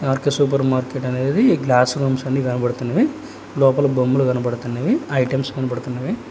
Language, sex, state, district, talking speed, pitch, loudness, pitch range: Telugu, male, Telangana, Hyderabad, 125 wpm, 135 Hz, -19 LUFS, 125-140 Hz